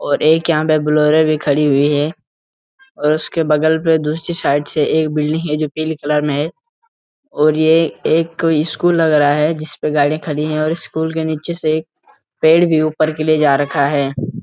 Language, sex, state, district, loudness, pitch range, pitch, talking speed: Hindi, male, Uttarakhand, Uttarkashi, -16 LUFS, 150-160 Hz, 155 Hz, 200 wpm